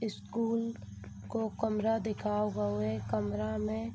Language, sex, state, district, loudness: Hindi, female, Bihar, Saharsa, -34 LUFS